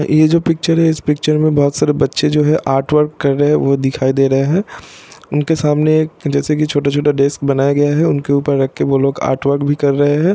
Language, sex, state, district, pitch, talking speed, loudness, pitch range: Hindi, male, Bihar, Sitamarhi, 145 Hz, 245 wpm, -14 LUFS, 140-155 Hz